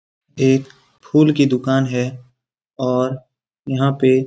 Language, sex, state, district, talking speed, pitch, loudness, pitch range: Hindi, male, Bihar, Lakhisarai, 125 wpm, 130 Hz, -18 LUFS, 125-135 Hz